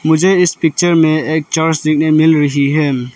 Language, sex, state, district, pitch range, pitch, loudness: Hindi, male, Arunachal Pradesh, Lower Dibang Valley, 150-160 Hz, 155 Hz, -12 LUFS